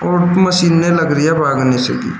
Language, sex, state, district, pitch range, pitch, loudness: Hindi, male, Uttar Pradesh, Shamli, 145-175 Hz, 165 Hz, -13 LUFS